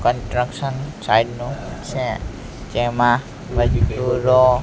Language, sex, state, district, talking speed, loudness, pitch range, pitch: Gujarati, male, Gujarat, Gandhinagar, 80 wpm, -20 LUFS, 120-130 Hz, 125 Hz